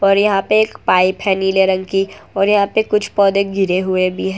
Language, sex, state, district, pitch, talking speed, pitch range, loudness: Hindi, female, Gujarat, Valsad, 195 Hz, 245 wpm, 190-200 Hz, -15 LUFS